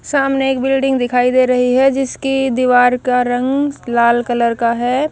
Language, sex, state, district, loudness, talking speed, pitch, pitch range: Hindi, female, Bihar, Patna, -15 LUFS, 175 wpm, 255 Hz, 245-270 Hz